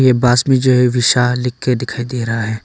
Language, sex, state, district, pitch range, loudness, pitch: Hindi, male, Arunachal Pradesh, Longding, 120-125 Hz, -14 LUFS, 125 Hz